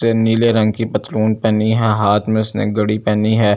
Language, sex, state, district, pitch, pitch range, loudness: Hindi, male, Delhi, New Delhi, 110 Hz, 105-110 Hz, -16 LUFS